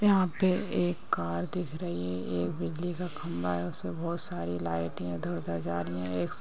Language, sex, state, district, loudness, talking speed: Hindi, female, Uttar Pradesh, Ghazipur, -31 LUFS, 215 wpm